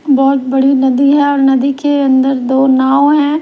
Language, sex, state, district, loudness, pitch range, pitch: Hindi, female, Bihar, Patna, -11 LUFS, 265-285 Hz, 270 Hz